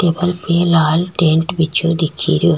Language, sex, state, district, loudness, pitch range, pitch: Rajasthani, female, Rajasthan, Churu, -15 LUFS, 160-175 Hz, 165 Hz